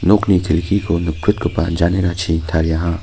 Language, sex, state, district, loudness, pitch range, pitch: Garo, male, Meghalaya, North Garo Hills, -17 LUFS, 80-95 Hz, 85 Hz